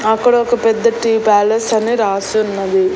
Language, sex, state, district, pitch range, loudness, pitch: Telugu, female, Andhra Pradesh, Annamaya, 205-230 Hz, -14 LUFS, 220 Hz